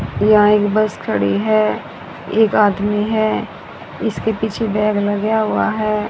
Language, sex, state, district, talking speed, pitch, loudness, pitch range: Hindi, female, Haryana, Rohtak, 135 wpm, 210 Hz, -17 LUFS, 205-215 Hz